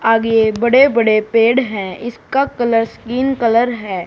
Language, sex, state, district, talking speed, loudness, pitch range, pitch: Hindi, male, Haryana, Charkhi Dadri, 145 wpm, -15 LUFS, 220-245 Hz, 230 Hz